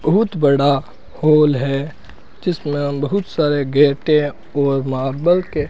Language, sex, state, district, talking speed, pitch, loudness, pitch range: Hindi, male, Rajasthan, Bikaner, 125 wpm, 145 Hz, -17 LUFS, 140-155 Hz